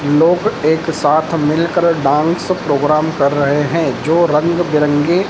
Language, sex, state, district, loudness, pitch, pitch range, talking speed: Hindi, male, Madhya Pradesh, Dhar, -14 LUFS, 160 Hz, 150-170 Hz, 135 wpm